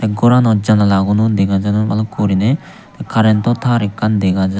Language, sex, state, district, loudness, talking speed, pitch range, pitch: Chakma, male, Tripura, Unakoti, -14 LUFS, 170 wpm, 100-120 Hz, 110 Hz